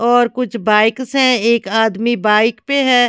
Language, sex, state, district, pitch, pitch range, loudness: Hindi, female, Himachal Pradesh, Shimla, 235 Hz, 225-250 Hz, -14 LUFS